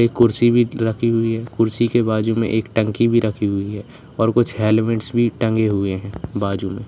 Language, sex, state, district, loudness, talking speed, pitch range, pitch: Hindi, male, Uttar Pradesh, Saharanpur, -19 LUFS, 220 wpm, 105-115 Hz, 115 Hz